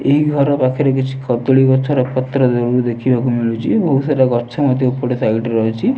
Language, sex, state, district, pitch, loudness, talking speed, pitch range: Odia, male, Odisha, Nuapada, 130 Hz, -15 LUFS, 190 wpm, 120-140 Hz